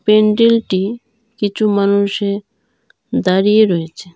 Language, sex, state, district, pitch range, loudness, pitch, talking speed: Bengali, female, Tripura, Dhalai, 200-220 Hz, -15 LUFS, 205 Hz, 70 wpm